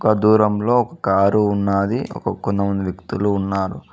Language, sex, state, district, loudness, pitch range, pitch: Telugu, male, Telangana, Mahabubabad, -19 LUFS, 100-110 Hz, 100 Hz